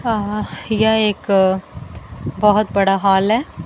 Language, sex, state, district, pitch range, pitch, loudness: Hindi, female, Bihar, Kaimur, 190-215 Hz, 205 Hz, -16 LUFS